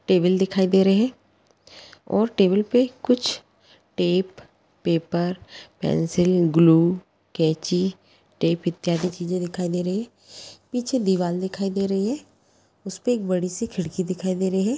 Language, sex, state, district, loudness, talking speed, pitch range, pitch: Hindi, female, Bihar, Begusarai, -23 LUFS, 140 wpm, 175-200 Hz, 185 Hz